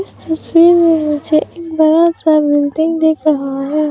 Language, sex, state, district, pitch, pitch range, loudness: Hindi, female, Arunachal Pradesh, Papum Pare, 315 Hz, 300-330 Hz, -13 LUFS